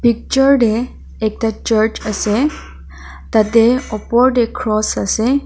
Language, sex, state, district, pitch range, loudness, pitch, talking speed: Nagamese, female, Nagaland, Dimapur, 215-250 Hz, -15 LUFS, 230 Hz, 110 wpm